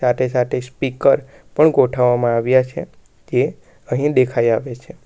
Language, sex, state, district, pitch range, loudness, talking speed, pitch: Gujarati, male, Gujarat, Valsad, 120-135 Hz, -17 LUFS, 140 wpm, 125 Hz